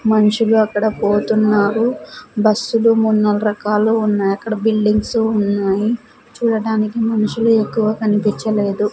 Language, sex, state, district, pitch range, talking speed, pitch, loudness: Telugu, female, Andhra Pradesh, Sri Satya Sai, 210-225 Hz, 100 wpm, 215 Hz, -16 LUFS